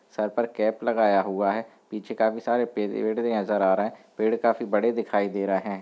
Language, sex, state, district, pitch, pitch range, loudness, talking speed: Hindi, male, Chhattisgarh, Bilaspur, 110 Hz, 100-115 Hz, -25 LUFS, 235 wpm